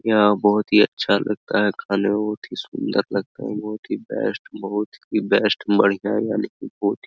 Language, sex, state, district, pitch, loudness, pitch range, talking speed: Hindi, male, Bihar, Araria, 105 Hz, -21 LUFS, 100-105 Hz, 210 wpm